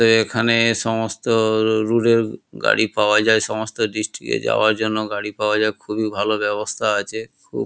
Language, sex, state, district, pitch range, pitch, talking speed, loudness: Bengali, male, West Bengal, Kolkata, 105-110 Hz, 110 Hz, 150 wpm, -19 LUFS